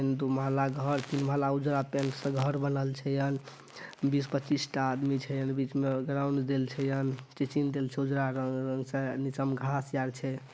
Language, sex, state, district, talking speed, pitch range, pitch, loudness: Maithili, male, Bihar, Madhepura, 165 wpm, 135-140 Hz, 135 Hz, -31 LUFS